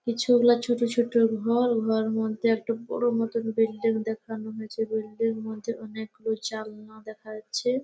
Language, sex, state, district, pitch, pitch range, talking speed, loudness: Bengali, female, West Bengal, Malda, 225 Hz, 220-230 Hz, 145 wpm, -26 LUFS